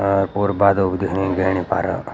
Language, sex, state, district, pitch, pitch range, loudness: Garhwali, male, Uttarakhand, Uttarkashi, 95 Hz, 95-100 Hz, -19 LUFS